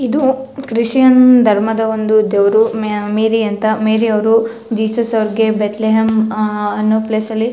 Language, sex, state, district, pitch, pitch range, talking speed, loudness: Kannada, female, Karnataka, Chamarajanagar, 220 Hz, 215-230 Hz, 145 wpm, -14 LUFS